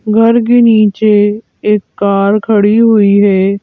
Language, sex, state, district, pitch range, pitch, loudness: Hindi, female, Madhya Pradesh, Bhopal, 200-220 Hz, 210 Hz, -9 LUFS